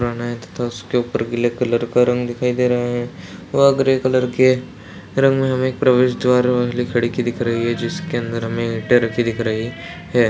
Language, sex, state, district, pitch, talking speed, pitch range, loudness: Hindi, male, Chhattisgarh, Rajnandgaon, 125 Hz, 210 wpm, 120-125 Hz, -18 LUFS